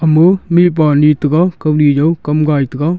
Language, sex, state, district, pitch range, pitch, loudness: Wancho, male, Arunachal Pradesh, Longding, 150-170 Hz, 155 Hz, -12 LUFS